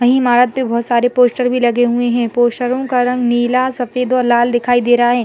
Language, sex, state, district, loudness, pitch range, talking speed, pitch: Hindi, female, Uttar Pradesh, Gorakhpur, -14 LUFS, 240-250 Hz, 240 wpm, 245 Hz